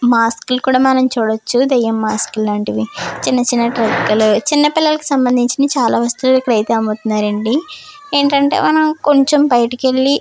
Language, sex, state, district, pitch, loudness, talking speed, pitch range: Telugu, female, Andhra Pradesh, Srikakulam, 250 Hz, -14 LUFS, 125 wpm, 225-280 Hz